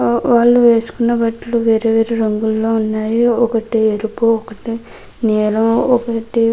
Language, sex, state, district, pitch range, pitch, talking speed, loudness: Telugu, female, Andhra Pradesh, Krishna, 220-235 Hz, 225 Hz, 120 wpm, -15 LUFS